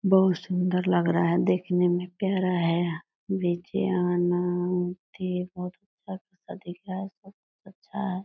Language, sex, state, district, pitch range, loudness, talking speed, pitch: Hindi, female, Bihar, Purnia, 175-190 Hz, -27 LUFS, 80 wpm, 180 Hz